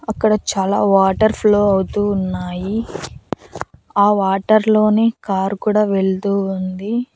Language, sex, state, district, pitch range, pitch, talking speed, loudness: Telugu, female, Andhra Pradesh, Annamaya, 190-215 Hz, 205 Hz, 110 wpm, -17 LUFS